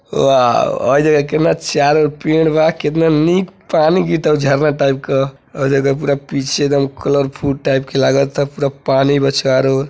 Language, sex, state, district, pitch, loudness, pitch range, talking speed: Bhojpuri, male, Uttar Pradesh, Deoria, 140 Hz, -14 LUFS, 135-155 Hz, 175 wpm